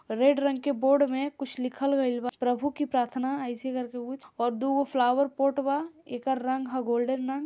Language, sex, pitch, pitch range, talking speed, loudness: Bhojpuri, female, 265 Hz, 250-275 Hz, 210 wpm, -28 LUFS